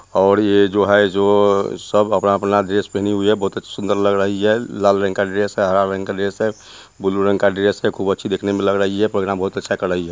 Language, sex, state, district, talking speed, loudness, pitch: Hindi, male, Bihar, Muzaffarpur, 260 wpm, -17 LUFS, 100 Hz